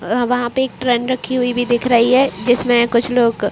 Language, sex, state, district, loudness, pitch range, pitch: Hindi, female, Chhattisgarh, Raigarh, -16 LUFS, 235-250 Hz, 245 Hz